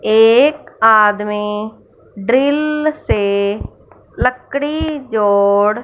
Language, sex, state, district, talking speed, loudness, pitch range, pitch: Hindi, female, Punjab, Fazilka, 60 wpm, -15 LUFS, 210-280 Hz, 225 Hz